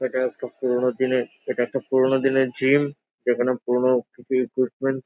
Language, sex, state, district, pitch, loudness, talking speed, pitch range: Bengali, male, West Bengal, Jalpaiguri, 130 Hz, -23 LUFS, 165 wpm, 125-135 Hz